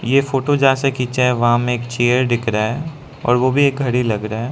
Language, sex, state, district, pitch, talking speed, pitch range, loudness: Hindi, male, Arunachal Pradesh, Lower Dibang Valley, 125 Hz, 265 wpm, 120-135 Hz, -17 LUFS